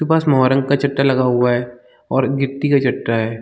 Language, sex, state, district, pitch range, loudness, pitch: Hindi, male, Chhattisgarh, Bilaspur, 120-140 Hz, -17 LUFS, 135 Hz